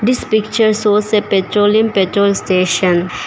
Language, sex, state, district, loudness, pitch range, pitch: English, female, Arunachal Pradesh, Papum Pare, -14 LUFS, 190-215 Hz, 205 Hz